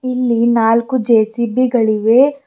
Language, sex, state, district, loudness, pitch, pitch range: Kannada, female, Karnataka, Bidar, -14 LUFS, 235 Hz, 225-255 Hz